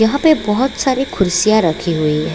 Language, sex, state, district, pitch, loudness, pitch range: Hindi, female, Bihar, Gopalganj, 215 Hz, -15 LUFS, 175-265 Hz